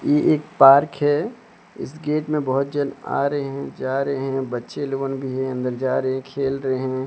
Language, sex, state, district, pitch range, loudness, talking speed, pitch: Hindi, male, Odisha, Sambalpur, 130-145 Hz, -21 LUFS, 210 wpm, 135 Hz